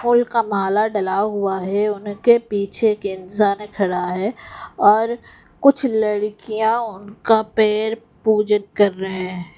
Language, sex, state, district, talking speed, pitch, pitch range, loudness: Hindi, female, Odisha, Khordha, 130 wpm, 210 Hz, 200-220 Hz, -19 LUFS